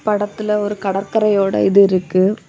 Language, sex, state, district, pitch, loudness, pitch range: Tamil, female, Tamil Nadu, Kanyakumari, 205 Hz, -16 LUFS, 195-210 Hz